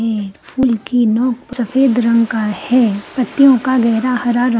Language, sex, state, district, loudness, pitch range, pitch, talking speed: Hindi, female, Bihar, Begusarai, -14 LUFS, 225-255 Hz, 240 Hz, 155 wpm